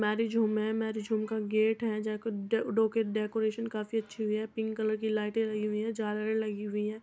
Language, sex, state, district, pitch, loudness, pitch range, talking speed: Hindi, female, Uttar Pradesh, Muzaffarnagar, 220 Hz, -32 LUFS, 215-225 Hz, 215 wpm